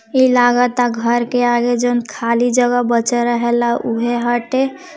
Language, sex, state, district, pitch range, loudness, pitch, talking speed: Hindi, female, Bihar, Gopalganj, 235-245 Hz, -16 LUFS, 240 Hz, 170 wpm